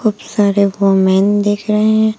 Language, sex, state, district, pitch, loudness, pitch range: Hindi, female, Uttar Pradesh, Lucknow, 205 Hz, -13 LUFS, 200-215 Hz